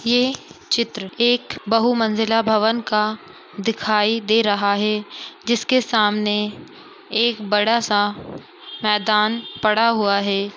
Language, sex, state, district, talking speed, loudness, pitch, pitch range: Hindi, female, Uttar Pradesh, Muzaffarnagar, 110 wpm, -19 LUFS, 220 Hz, 210-230 Hz